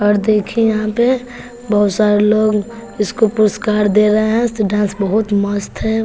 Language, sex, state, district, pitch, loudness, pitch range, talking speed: Hindi, female, Bihar, West Champaran, 215 Hz, -15 LUFS, 205-225 Hz, 170 wpm